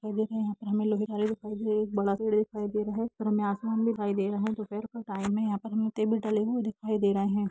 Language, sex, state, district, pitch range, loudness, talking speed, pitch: Hindi, female, Jharkhand, Jamtara, 205-220 Hz, -30 LUFS, 230 wpm, 215 Hz